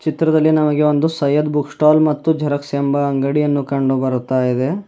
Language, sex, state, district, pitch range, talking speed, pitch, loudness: Kannada, male, Karnataka, Bidar, 140-155 Hz, 160 wpm, 145 Hz, -16 LUFS